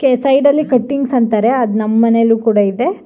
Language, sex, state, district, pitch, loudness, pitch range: Kannada, female, Karnataka, Shimoga, 240 Hz, -13 LUFS, 225-270 Hz